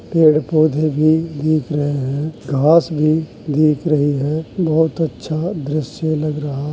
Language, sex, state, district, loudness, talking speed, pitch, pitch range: Hindi, male, Uttar Pradesh, Jalaun, -17 LUFS, 150 wpm, 155 Hz, 150-160 Hz